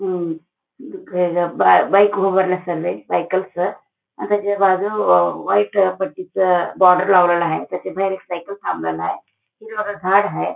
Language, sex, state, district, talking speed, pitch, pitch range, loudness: Marathi, female, Maharashtra, Solapur, 130 wpm, 185 Hz, 175-200 Hz, -18 LUFS